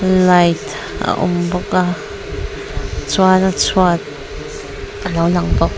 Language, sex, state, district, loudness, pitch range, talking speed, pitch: Mizo, female, Mizoram, Aizawl, -16 LUFS, 175-185 Hz, 115 wpm, 180 Hz